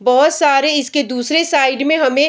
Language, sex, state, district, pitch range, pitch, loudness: Hindi, female, Bihar, Bhagalpur, 265-300 Hz, 285 Hz, -14 LUFS